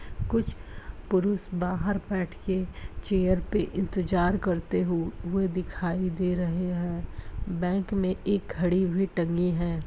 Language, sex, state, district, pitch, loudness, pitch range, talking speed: Hindi, female, Uttar Pradesh, Ghazipur, 180 Hz, -28 LUFS, 170-190 Hz, 130 wpm